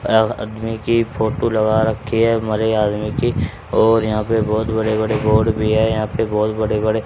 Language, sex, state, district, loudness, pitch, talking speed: Hindi, male, Haryana, Rohtak, -18 LUFS, 110 Hz, 195 wpm